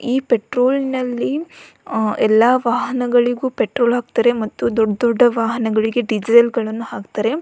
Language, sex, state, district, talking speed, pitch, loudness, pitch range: Kannada, female, Karnataka, Belgaum, 115 wpm, 240 Hz, -17 LUFS, 225-250 Hz